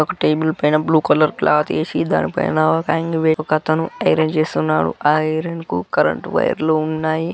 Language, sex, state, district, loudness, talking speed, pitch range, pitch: Telugu, male, Telangana, Karimnagar, -18 LUFS, 145 wpm, 150-160 Hz, 155 Hz